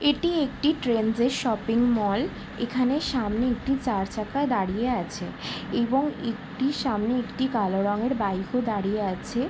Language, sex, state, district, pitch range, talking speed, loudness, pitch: Bengali, female, West Bengal, Jalpaiguri, 210-260 Hz, 150 wpm, -26 LUFS, 240 Hz